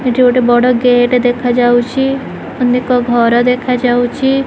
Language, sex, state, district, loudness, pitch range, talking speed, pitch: Odia, female, Odisha, Khordha, -12 LUFS, 245-250 Hz, 105 wpm, 250 Hz